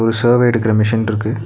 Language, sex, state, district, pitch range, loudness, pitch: Tamil, male, Tamil Nadu, Nilgiris, 110-120 Hz, -15 LUFS, 115 Hz